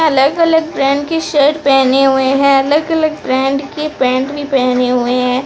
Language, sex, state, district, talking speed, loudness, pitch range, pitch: Hindi, female, Odisha, Sambalpur, 185 wpm, -13 LUFS, 265-300 Hz, 275 Hz